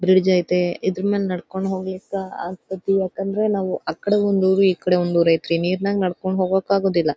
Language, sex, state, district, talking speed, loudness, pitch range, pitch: Kannada, female, Karnataka, Dharwad, 165 wpm, -21 LUFS, 180-195 Hz, 190 Hz